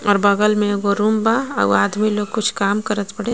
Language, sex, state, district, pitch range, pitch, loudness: Bhojpuri, female, Jharkhand, Palamu, 205-220 Hz, 210 Hz, -18 LUFS